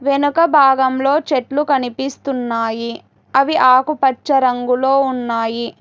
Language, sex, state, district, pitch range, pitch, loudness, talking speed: Telugu, female, Telangana, Hyderabad, 250-280 Hz, 265 Hz, -16 LUFS, 80 wpm